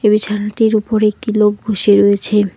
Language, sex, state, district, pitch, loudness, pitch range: Bengali, female, West Bengal, Alipurduar, 210 Hz, -14 LUFS, 205-215 Hz